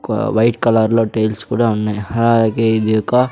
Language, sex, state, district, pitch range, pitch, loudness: Telugu, male, Andhra Pradesh, Sri Satya Sai, 110-115 Hz, 110 Hz, -15 LUFS